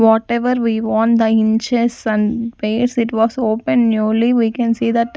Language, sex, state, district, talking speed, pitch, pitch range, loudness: English, female, Punjab, Fazilka, 140 wpm, 230 Hz, 220-235 Hz, -16 LUFS